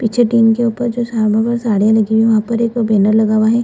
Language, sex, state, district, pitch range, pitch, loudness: Hindi, female, Bihar, Purnia, 220-235 Hz, 225 Hz, -14 LUFS